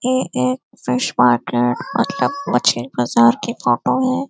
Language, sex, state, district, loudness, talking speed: Hindi, female, Uttar Pradesh, Varanasi, -18 LUFS, 140 wpm